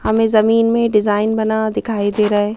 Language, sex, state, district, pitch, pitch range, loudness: Hindi, female, Madhya Pradesh, Bhopal, 220 Hz, 210-225 Hz, -16 LUFS